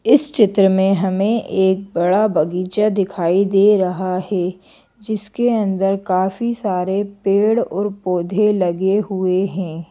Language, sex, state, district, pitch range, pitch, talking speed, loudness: Hindi, female, Madhya Pradesh, Bhopal, 185-210 Hz, 195 Hz, 125 wpm, -17 LUFS